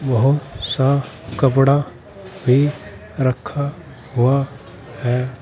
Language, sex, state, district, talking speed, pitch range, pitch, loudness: Hindi, male, Uttar Pradesh, Saharanpur, 75 wpm, 125-140 Hz, 130 Hz, -19 LUFS